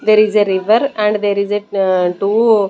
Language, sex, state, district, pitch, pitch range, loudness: English, female, Chandigarh, Chandigarh, 205 Hz, 200-215 Hz, -14 LUFS